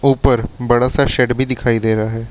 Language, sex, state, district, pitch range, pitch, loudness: Hindi, male, Uttar Pradesh, Lucknow, 115-130 Hz, 125 Hz, -16 LUFS